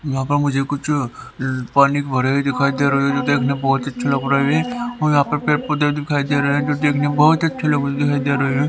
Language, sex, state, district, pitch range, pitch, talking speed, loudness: Hindi, male, Haryana, Rohtak, 140-145 Hz, 140 Hz, 250 wpm, -18 LUFS